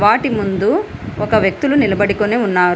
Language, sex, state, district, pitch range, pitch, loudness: Telugu, female, Telangana, Hyderabad, 190-220 Hz, 205 Hz, -16 LUFS